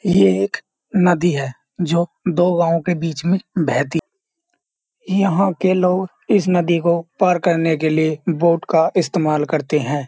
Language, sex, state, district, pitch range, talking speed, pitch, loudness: Hindi, male, Uttar Pradesh, Jyotiba Phule Nagar, 160-185 Hz, 160 wpm, 170 Hz, -18 LUFS